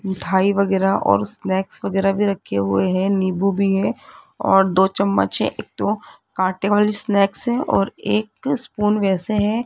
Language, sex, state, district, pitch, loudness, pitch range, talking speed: Hindi, female, Rajasthan, Jaipur, 195 Hz, -19 LUFS, 190-210 Hz, 170 wpm